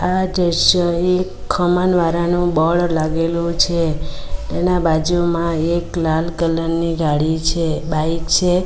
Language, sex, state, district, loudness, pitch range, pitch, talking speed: Gujarati, female, Gujarat, Valsad, -17 LUFS, 160-175 Hz, 170 Hz, 120 wpm